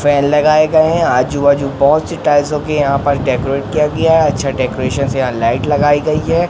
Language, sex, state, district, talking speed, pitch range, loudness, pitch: Hindi, male, Madhya Pradesh, Katni, 210 wpm, 135-155 Hz, -13 LUFS, 145 Hz